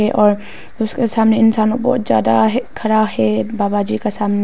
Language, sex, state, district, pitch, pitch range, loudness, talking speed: Hindi, female, Arunachal Pradesh, Papum Pare, 215 Hz, 205-225 Hz, -16 LUFS, 190 wpm